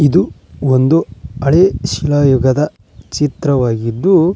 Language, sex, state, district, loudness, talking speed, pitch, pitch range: Kannada, male, Karnataka, Koppal, -14 LUFS, 70 wpm, 140 Hz, 120-155 Hz